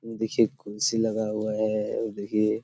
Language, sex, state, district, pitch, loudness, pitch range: Hindi, male, Chhattisgarh, Korba, 110 Hz, -27 LUFS, 105-110 Hz